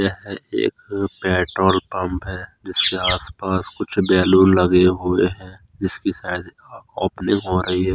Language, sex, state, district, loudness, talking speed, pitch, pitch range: Hindi, male, Chandigarh, Chandigarh, -19 LUFS, 145 wpm, 95 Hz, 90-95 Hz